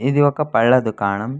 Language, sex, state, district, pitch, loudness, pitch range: Telugu, male, Andhra Pradesh, Anantapur, 125 Hz, -17 LUFS, 110-145 Hz